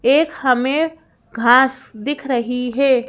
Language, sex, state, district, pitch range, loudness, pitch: Hindi, female, Madhya Pradesh, Bhopal, 245-275 Hz, -17 LUFS, 260 Hz